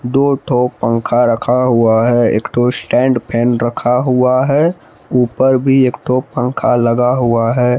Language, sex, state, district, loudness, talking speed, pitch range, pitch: Hindi, male, Jharkhand, Palamu, -13 LUFS, 160 wpm, 120-130 Hz, 125 Hz